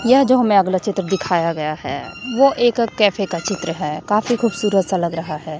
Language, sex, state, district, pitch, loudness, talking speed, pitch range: Hindi, female, Chhattisgarh, Raipur, 195 Hz, -18 LUFS, 215 wpm, 165-235 Hz